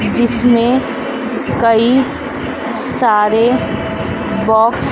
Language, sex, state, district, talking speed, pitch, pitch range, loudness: Hindi, female, Madhya Pradesh, Dhar, 60 wpm, 240 Hz, 225-255 Hz, -14 LUFS